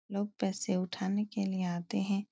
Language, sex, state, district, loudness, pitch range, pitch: Hindi, female, Uttar Pradesh, Etah, -34 LUFS, 190-205 Hz, 195 Hz